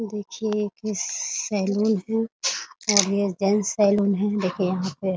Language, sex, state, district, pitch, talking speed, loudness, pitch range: Hindi, female, Bihar, Muzaffarpur, 205 Hz, 150 wpm, -23 LUFS, 195-215 Hz